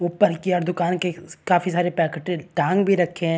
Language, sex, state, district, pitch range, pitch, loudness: Hindi, female, Maharashtra, Aurangabad, 170-180 Hz, 175 Hz, -22 LUFS